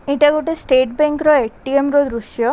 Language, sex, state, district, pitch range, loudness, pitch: Odia, female, Odisha, Khordha, 255-300 Hz, -16 LUFS, 280 Hz